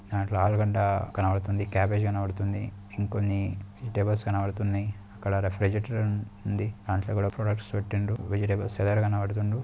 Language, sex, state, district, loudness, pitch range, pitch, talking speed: Telugu, male, Andhra Pradesh, Guntur, -29 LUFS, 100-105 Hz, 100 Hz, 70 wpm